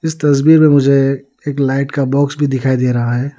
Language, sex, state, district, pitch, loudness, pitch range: Hindi, male, Arunachal Pradesh, Lower Dibang Valley, 140 Hz, -13 LUFS, 135-145 Hz